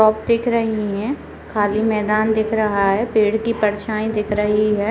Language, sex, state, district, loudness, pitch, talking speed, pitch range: Hindi, female, Uttarakhand, Uttarkashi, -19 LUFS, 215 Hz, 170 wpm, 210-220 Hz